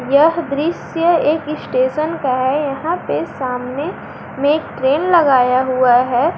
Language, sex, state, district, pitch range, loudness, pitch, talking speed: Hindi, female, Jharkhand, Garhwa, 255-315 Hz, -16 LUFS, 285 Hz, 130 wpm